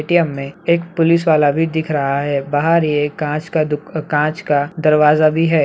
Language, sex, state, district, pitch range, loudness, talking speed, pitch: Hindi, male, Bihar, Begusarai, 145-165 Hz, -16 LUFS, 200 wpm, 155 Hz